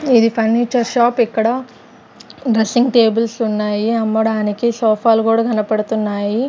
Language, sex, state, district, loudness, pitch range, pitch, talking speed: Telugu, female, Andhra Pradesh, Sri Satya Sai, -16 LUFS, 220-235 Hz, 225 Hz, 100 wpm